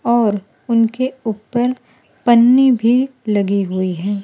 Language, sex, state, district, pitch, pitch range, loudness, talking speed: Hindi, female, Gujarat, Valsad, 230 Hz, 200-250 Hz, -16 LUFS, 115 wpm